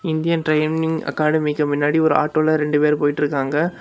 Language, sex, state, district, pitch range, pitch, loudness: Tamil, male, Tamil Nadu, Kanyakumari, 150-160 Hz, 155 Hz, -19 LUFS